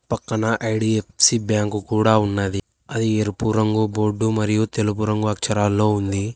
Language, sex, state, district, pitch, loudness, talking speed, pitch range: Telugu, male, Telangana, Hyderabad, 110 Hz, -20 LUFS, 130 wpm, 105-110 Hz